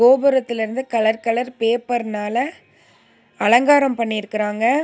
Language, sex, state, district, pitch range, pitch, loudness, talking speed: Tamil, female, Tamil Nadu, Nilgiris, 220-260 Hz, 235 Hz, -19 LUFS, 75 wpm